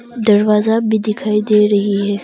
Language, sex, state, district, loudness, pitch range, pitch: Hindi, female, Arunachal Pradesh, Longding, -14 LUFS, 205-220 Hz, 210 Hz